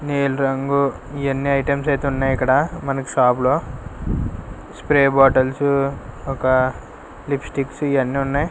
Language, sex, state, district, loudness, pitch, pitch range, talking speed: Telugu, male, Andhra Pradesh, Sri Satya Sai, -19 LUFS, 135 Hz, 130-140 Hz, 135 wpm